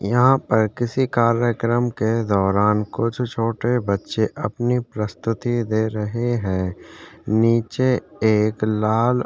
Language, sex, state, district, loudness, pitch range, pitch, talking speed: Hindi, male, Chhattisgarh, Sukma, -21 LUFS, 105-120 Hz, 115 Hz, 115 wpm